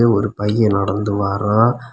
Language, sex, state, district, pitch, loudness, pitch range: Tamil, male, Tamil Nadu, Kanyakumari, 105 Hz, -17 LUFS, 100-115 Hz